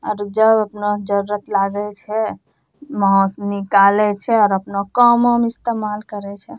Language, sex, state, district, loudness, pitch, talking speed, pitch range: Angika, female, Bihar, Bhagalpur, -17 LUFS, 210 Hz, 155 wpm, 200-220 Hz